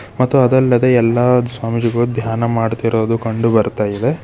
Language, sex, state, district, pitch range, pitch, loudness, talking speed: Kannada, male, Karnataka, Bidar, 115-125 Hz, 115 Hz, -15 LUFS, 125 wpm